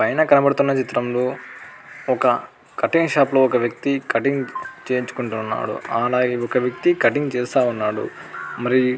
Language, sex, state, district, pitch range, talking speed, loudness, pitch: Telugu, male, Andhra Pradesh, Anantapur, 125-140 Hz, 115 wpm, -20 LUFS, 130 Hz